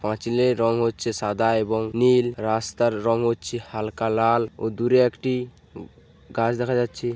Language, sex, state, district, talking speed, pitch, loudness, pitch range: Bengali, male, West Bengal, Paschim Medinipur, 145 wpm, 115 Hz, -23 LUFS, 110-120 Hz